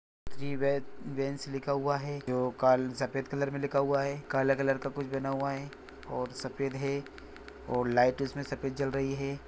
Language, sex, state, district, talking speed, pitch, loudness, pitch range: Hindi, male, Maharashtra, Nagpur, 190 wpm, 135 Hz, -32 LUFS, 135-140 Hz